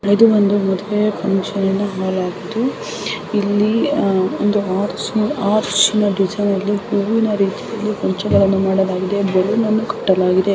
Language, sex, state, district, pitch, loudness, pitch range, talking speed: Kannada, female, Karnataka, Raichur, 205 Hz, -17 LUFS, 195-210 Hz, 115 wpm